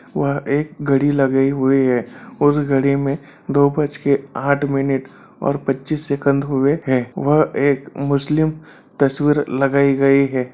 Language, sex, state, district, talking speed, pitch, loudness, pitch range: Hindi, male, Bihar, Gaya, 150 wpm, 140 Hz, -18 LUFS, 135-145 Hz